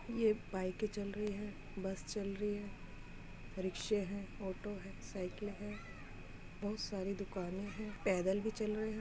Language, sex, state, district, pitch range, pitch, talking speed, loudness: Hindi, female, Uttar Pradesh, Muzaffarnagar, 190-210 Hz, 205 Hz, 160 wpm, -41 LUFS